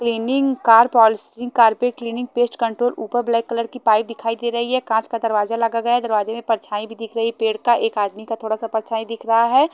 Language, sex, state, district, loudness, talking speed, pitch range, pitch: Hindi, female, Haryana, Charkhi Dadri, -19 LUFS, 240 wpm, 225-240 Hz, 230 Hz